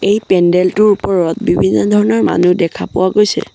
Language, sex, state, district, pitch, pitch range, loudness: Assamese, male, Assam, Sonitpur, 180 Hz, 170-200 Hz, -12 LUFS